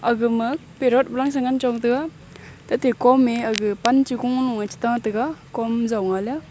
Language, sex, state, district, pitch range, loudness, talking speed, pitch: Wancho, female, Arunachal Pradesh, Longding, 230-260 Hz, -21 LUFS, 210 wpm, 240 Hz